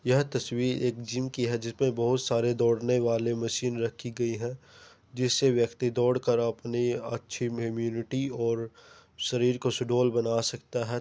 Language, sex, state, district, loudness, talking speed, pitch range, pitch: Hindi, male, Uttar Pradesh, Jyotiba Phule Nagar, -28 LUFS, 165 wpm, 115-125 Hz, 120 Hz